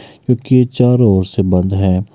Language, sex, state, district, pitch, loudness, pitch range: Maithili, male, Bihar, Bhagalpur, 100 Hz, -13 LUFS, 95-125 Hz